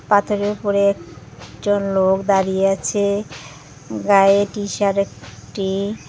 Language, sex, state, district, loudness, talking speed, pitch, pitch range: Bengali, female, West Bengal, Cooch Behar, -19 LUFS, 90 wpm, 195 Hz, 170-205 Hz